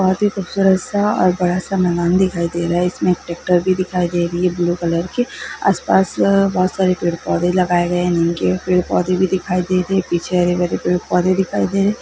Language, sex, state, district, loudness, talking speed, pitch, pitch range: Maithili, female, Bihar, Begusarai, -17 LUFS, 215 wpm, 180 Hz, 175-190 Hz